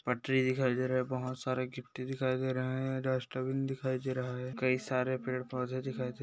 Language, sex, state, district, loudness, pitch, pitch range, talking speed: Hindi, male, Rajasthan, Nagaur, -34 LUFS, 130 Hz, 125-130 Hz, 240 wpm